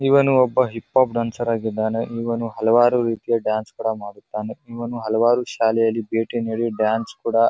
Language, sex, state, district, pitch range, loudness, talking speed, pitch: Kannada, male, Karnataka, Bijapur, 110-120 Hz, -21 LUFS, 160 wpm, 115 Hz